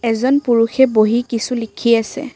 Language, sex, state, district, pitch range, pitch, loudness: Assamese, female, Assam, Kamrup Metropolitan, 230-260 Hz, 235 Hz, -16 LUFS